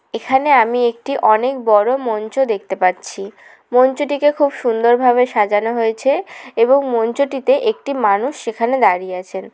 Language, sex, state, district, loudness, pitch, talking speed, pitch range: Bengali, female, West Bengal, Jalpaiguri, -16 LUFS, 245 Hz, 130 wpm, 220-280 Hz